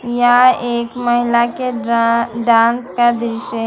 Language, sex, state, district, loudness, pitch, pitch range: Hindi, female, Jharkhand, Ranchi, -15 LUFS, 240 Hz, 230-245 Hz